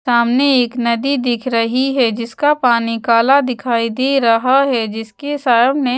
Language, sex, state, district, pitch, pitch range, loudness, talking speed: Hindi, female, Bihar, West Champaran, 245 Hz, 230-270 Hz, -15 LUFS, 150 wpm